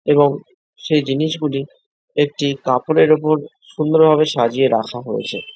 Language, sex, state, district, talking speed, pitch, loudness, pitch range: Bengali, male, West Bengal, Jhargram, 110 wpm, 145 Hz, -17 LUFS, 135-155 Hz